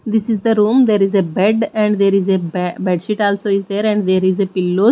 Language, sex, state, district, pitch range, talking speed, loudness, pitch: English, female, Odisha, Nuapada, 185-215 Hz, 280 wpm, -15 LUFS, 200 Hz